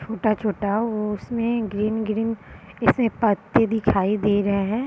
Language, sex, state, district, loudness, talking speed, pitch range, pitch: Hindi, female, Bihar, Purnia, -22 LUFS, 125 wpm, 205-225 Hz, 215 Hz